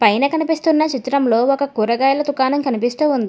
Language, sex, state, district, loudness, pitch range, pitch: Telugu, female, Telangana, Hyderabad, -17 LUFS, 245-290 Hz, 275 Hz